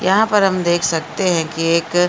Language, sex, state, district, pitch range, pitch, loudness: Hindi, female, Uttarakhand, Uttarkashi, 165-190 Hz, 175 Hz, -17 LUFS